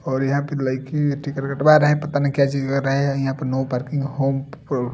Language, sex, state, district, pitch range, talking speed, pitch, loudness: Hindi, male, Delhi, New Delhi, 135-145 Hz, 255 wpm, 140 Hz, -21 LUFS